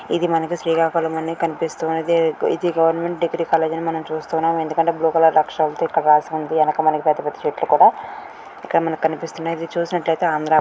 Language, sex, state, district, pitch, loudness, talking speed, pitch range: Telugu, female, Andhra Pradesh, Srikakulam, 165 Hz, -19 LUFS, 175 wpm, 160-165 Hz